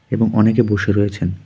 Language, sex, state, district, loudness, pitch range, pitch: Bengali, male, West Bengal, Darjeeling, -16 LUFS, 100-115 Hz, 105 Hz